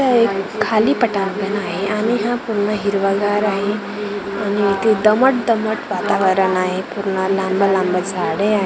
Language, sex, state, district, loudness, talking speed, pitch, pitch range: Marathi, female, Maharashtra, Gondia, -18 LUFS, 155 wpm, 205 Hz, 195-215 Hz